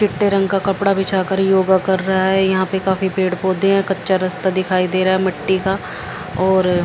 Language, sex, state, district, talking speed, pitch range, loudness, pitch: Hindi, female, Haryana, Jhajjar, 210 wpm, 185-195 Hz, -17 LUFS, 190 Hz